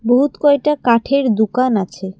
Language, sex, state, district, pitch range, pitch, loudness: Bengali, female, Assam, Kamrup Metropolitan, 220-280 Hz, 245 Hz, -15 LUFS